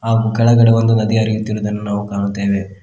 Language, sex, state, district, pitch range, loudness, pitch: Kannada, male, Karnataka, Koppal, 100-115 Hz, -15 LUFS, 110 Hz